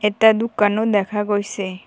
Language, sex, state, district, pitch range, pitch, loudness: Assamese, female, Assam, Kamrup Metropolitan, 205-220 Hz, 210 Hz, -19 LUFS